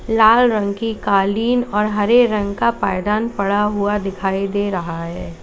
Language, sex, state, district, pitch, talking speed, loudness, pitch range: Hindi, female, Uttar Pradesh, Lalitpur, 205 Hz, 165 wpm, -18 LUFS, 195-225 Hz